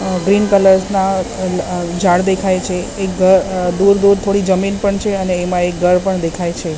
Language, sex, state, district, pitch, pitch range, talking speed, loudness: Gujarati, female, Maharashtra, Mumbai Suburban, 190 Hz, 180-195 Hz, 210 wpm, -14 LUFS